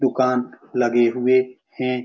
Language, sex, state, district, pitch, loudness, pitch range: Hindi, male, Bihar, Saran, 125 Hz, -20 LUFS, 125-130 Hz